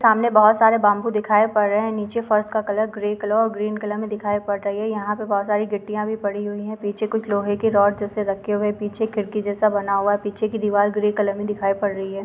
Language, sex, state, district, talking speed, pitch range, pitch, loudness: Hindi, female, Chhattisgarh, Jashpur, 275 wpm, 205-215 Hz, 210 Hz, -21 LUFS